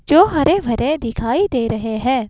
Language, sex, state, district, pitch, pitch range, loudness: Hindi, female, Himachal Pradesh, Shimla, 260 Hz, 230-320 Hz, -17 LUFS